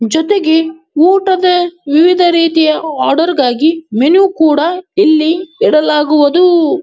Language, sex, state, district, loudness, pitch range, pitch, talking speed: Kannada, male, Karnataka, Dharwad, -11 LUFS, 310-360 Hz, 325 Hz, 90 wpm